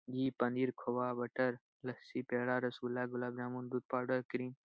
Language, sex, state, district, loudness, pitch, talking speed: Hindi, male, Bihar, Supaul, -39 LUFS, 125 Hz, 155 wpm